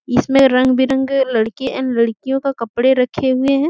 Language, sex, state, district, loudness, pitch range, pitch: Hindi, female, Jharkhand, Sahebganj, -16 LUFS, 250-270 Hz, 260 Hz